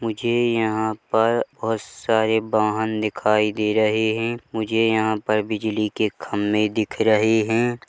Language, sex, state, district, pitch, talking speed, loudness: Hindi, male, Chhattisgarh, Bilaspur, 110 Hz, 150 wpm, -21 LUFS